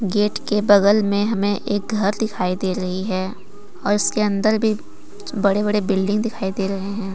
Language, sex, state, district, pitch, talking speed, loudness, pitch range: Hindi, female, Jharkhand, Deoghar, 205 Hz, 185 wpm, -20 LUFS, 195-210 Hz